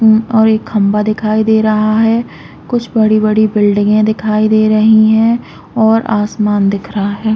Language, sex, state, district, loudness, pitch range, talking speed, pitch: Hindi, female, Chhattisgarh, Raigarh, -12 LUFS, 215-220 Hz, 165 wpm, 215 Hz